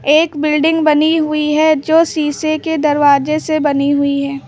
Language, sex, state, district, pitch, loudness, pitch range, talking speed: Hindi, female, Uttar Pradesh, Lucknow, 305 Hz, -13 LUFS, 290-315 Hz, 175 wpm